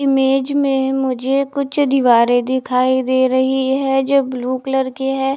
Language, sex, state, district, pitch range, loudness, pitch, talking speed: Hindi, female, Haryana, Charkhi Dadri, 260-270 Hz, -16 LUFS, 265 Hz, 155 wpm